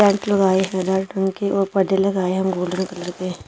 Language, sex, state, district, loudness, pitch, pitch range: Hindi, female, Himachal Pradesh, Shimla, -20 LUFS, 190 Hz, 185-195 Hz